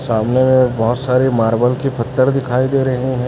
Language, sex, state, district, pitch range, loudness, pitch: Hindi, male, Chhattisgarh, Raipur, 120-130 Hz, -15 LUFS, 125 Hz